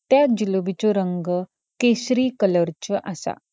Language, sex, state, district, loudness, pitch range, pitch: Konkani, female, Goa, North and South Goa, -22 LUFS, 180-235 Hz, 200 Hz